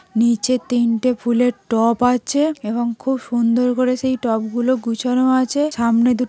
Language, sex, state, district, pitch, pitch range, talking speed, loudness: Bengali, female, West Bengal, North 24 Parganas, 245 Hz, 235-255 Hz, 145 wpm, -18 LUFS